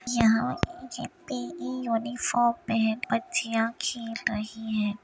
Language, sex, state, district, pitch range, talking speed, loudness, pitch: Hindi, female, Uttar Pradesh, Hamirpur, 220-240 Hz, 105 wpm, -28 LUFS, 225 Hz